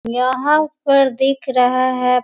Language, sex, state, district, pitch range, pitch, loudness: Hindi, female, Bihar, Sitamarhi, 250-275 Hz, 260 Hz, -16 LUFS